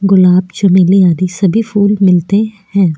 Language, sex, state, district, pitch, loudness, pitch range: Hindi, female, Uttarakhand, Tehri Garhwal, 190 Hz, -10 LUFS, 180-200 Hz